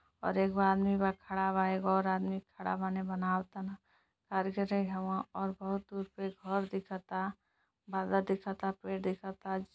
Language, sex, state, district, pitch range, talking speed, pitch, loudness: Bhojpuri, female, Uttar Pradesh, Gorakhpur, 190-195 Hz, 135 wpm, 190 Hz, -35 LUFS